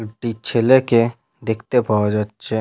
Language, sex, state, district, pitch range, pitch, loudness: Bengali, male, West Bengal, Purulia, 110-120 Hz, 115 Hz, -18 LUFS